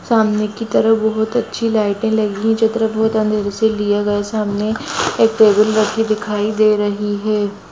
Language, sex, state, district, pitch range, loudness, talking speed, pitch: Hindi, female, Maharashtra, Aurangabad, 210-220 Hz, -16 LUFS, 180 wpm, 215 Hz